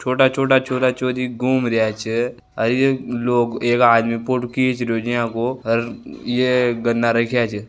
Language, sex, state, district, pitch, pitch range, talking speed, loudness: Marwari, male, Rajasthan, Nagaur, 120 Hz, 115-130 Hz, 155 wpm, -19 LUFS